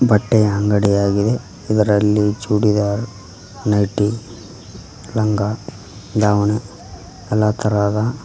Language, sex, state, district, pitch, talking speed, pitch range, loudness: Kannada, male, Karnataka, Koppal, 105 Hz, 65 wpm, 100-110 Hz, -18 LUFS